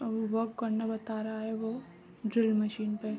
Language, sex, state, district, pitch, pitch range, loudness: Hindi, female, Jharkhand, Sahebganj, 220 Hz, 215-225 Hz, -33 LUFS